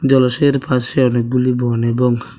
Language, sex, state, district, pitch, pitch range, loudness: Bengali, male, Tripura, West Tripura, 125 Hz, 120-130 Hz, -15 LUFS